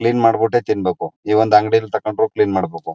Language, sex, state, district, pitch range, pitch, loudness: Kannada, male, Karnataka, Mysore, 105-115 Hz, 110 Hz, -17 LUFS